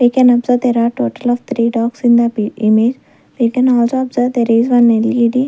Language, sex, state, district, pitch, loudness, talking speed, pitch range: English, female, Punjab, Fazilka, 240 Hz, -13 LUFS, 210 wpm, 230-245 Hz